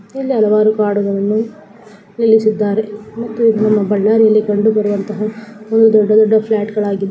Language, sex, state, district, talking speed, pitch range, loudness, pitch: Kannada, female, Karnataka, Bellary, 125 wpm, 205-220 Hz, -14 LUFS, 215 Hz